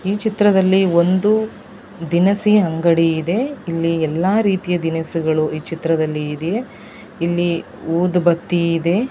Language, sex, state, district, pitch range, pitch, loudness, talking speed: Kannada, female, Karnataka, Dakshina Kannada, 165-200 Hz, 175 Hz, -18 LUFS, 105 wpm